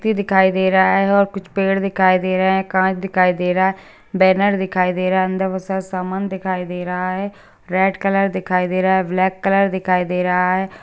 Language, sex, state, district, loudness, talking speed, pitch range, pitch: Hindi, female, Bihar, Jahanabad, -18 LUFS, 220 wpm, 185-195 Hz, 190 Hz